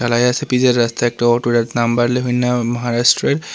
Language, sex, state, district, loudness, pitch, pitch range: Bengali, male, Tripura, West Tripura, -16 LUFS, 120 Hz, 120-125 Hz